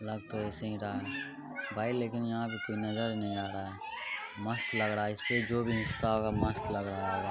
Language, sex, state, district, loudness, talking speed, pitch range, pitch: Hindi, male, Bihar, Araria, -34 LUFS, 230 wpm, 105-115 Hz, 110 Hz